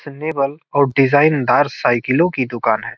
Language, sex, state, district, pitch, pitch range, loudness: Hindi, male, Bihar, Gopalganj, 140 Hz, 130-145 Hz, -16 LUFS